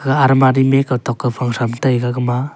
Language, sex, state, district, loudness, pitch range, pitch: Wancho, male, Arunachal Pradesh, Longding, -15 LUFS, 120-135 Hz, 125 Hz